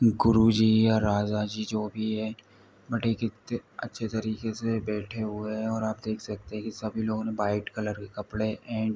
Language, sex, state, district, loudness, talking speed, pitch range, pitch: Hindi, male, Uttar Pradesh, Ghazipur, -29 LUFS, 195 wpm, 105-110 Hz, 110 Hz